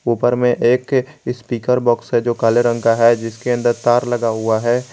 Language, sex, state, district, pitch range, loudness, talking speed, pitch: Hindi, male, Jharkhand, Garhwa, 115-125 Hz, -17 LUFS, 195 wpm, 120 Hz